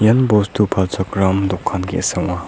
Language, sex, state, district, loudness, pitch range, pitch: Garo, male, Meghalaya, South Garo Hills, -17 LUFS, 95-105 Hz, 95 Hz